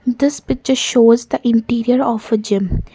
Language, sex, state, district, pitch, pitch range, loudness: English, female, Karnataka, Bangalore, 235 Hz, 230-250 Hz, -16 LUFS